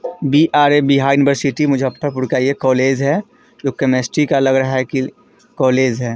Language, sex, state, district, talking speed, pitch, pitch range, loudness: Hindi, male, Bihar, Vaishali, 165 wpm, 135 Hz, 130-145 Hz, -15 LUFS